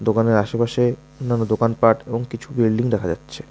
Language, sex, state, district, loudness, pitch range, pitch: Bengali, male, West Bengal, Alipurduar, -20 LUFS, 110-120 Hz, 115 Hz